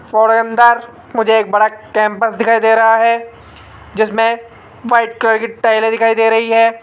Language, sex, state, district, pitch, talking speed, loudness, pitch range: Hindi, male, Rajasthan, Jaipur, 225 Hz, 165 wpm, -13 LUFS, 225-230 Hz